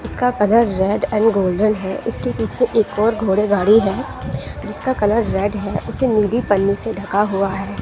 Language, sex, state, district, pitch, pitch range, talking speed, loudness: Hindi, female, Bihar, West Champaran, 210 Hz, 200-225 Hz, 185 wpm, -18 LUFS